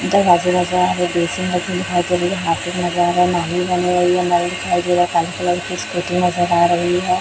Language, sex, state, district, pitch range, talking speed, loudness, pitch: Hindi, male, Chhattisgarh, Raipur, 175-180 Hz, 65 wpm, -17 LUFS, 180 Hz